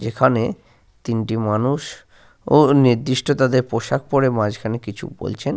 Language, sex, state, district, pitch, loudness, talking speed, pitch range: Bengali, male, Jharkhand, Sahebganj, 125 Hz, -19 LUFS, 120 wpm, 115-135 Hz